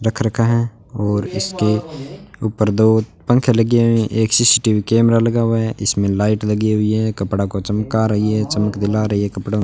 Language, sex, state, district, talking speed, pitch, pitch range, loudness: Hindi, male, Rajasthan, Bikaner, 200 wpm, 110 Hz, 105-115 Hz, -17 LUFS